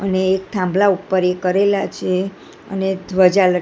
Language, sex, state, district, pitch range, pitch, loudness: Gujarati, female, Gujarat, Gandhinagar, 185-195 Hz, 190 Hz, -17 LUFS